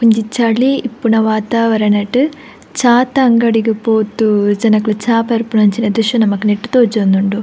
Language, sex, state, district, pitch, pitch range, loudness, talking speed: Tulu, female, Karnataka, Dakshina Kannada, 225 Hz, 215-235 Hz, -13 LUFS, 115 wpm